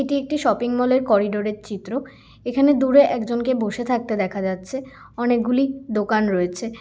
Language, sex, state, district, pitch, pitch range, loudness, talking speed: Bengali, female, West Bengal, Kolkata, 240 Hz, 210-265 Hz, -21 LUFS, 165 wpm